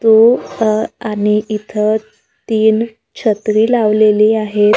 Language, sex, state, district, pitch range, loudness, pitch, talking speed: Marathi, female, Maharashtra, Gondia, 215-220 Hz, -14 LUFS, 215 Hz, 100 wpm